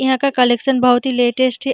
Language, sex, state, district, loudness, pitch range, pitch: Hindi, female, Uttar Pradesh, Jyotiba Phule Nagar, -15 LUFS, 245-265 Hz, 255 Hz